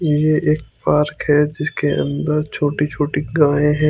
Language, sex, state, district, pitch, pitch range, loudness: Hindi, male, Chandigarh, Chandigarh, 150 Hz, 145-150 Hz, -18 LUFS